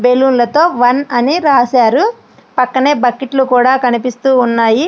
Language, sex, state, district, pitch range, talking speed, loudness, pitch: Telugu, female, Andhra Pradesh, Srikakulam, 245-270 Hz, 125 wpm, -12 LUFS, 255 Hz